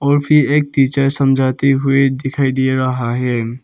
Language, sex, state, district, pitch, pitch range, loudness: Hindi, male, Arunachal Pradesh, Papum Pare, 135 Hz, 130-140 Hz, -14 LUFS